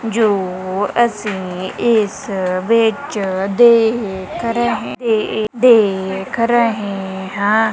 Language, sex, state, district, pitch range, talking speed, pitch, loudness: Punjabi, female, Punjab, Kapurthala, 190-230 Hz, 75 wpm, 215 Hz, -16 LUFS